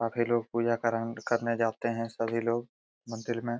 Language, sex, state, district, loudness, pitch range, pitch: Hindi, male, Jharkhand, Jamtara, -31 LUFS, 115-120 Hz, 115 Hz